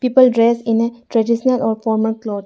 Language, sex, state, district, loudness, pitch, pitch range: English, female, Arunachal Pradesh, Lower Dibang Valley, -16 LUFS, 230 Hz, 220-240 Hz